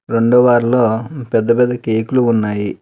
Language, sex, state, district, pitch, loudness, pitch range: Telugu, male, Telangana, Hyderabad, 115 Hz, -14 LUFS, 110-125 Hz